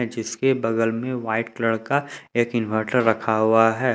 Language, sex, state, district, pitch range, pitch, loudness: Hindi, male, Jharkhand, Ranchi, 110-125 Hz, 115 Hz, -22 LUFS